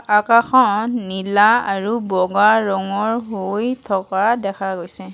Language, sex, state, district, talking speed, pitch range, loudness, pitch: Assamese, female, Assam, Kamrup Metropolitan, 105 wpm, 195-225 Hz, -17 LUFS, 205 Hz